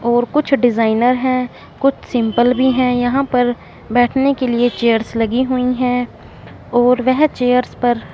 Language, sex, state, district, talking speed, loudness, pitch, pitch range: Hindi, female, Punjab, Fazilka, 155 wpm, -16 LUFS, 245 Hz, 240-255 Hz